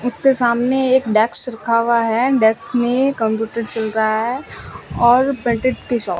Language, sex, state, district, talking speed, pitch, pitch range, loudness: Hindi, female, Rajasthan, Bikaner, 165 wpm, 240 Hz, 225-255 Hz, -17 LUFS